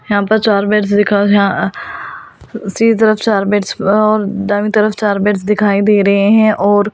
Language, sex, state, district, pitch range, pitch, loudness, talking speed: Hindi, female, Delhi, New Delhi, 205-215 Hz, 210 Hz, -12 LUFS, 165 wpm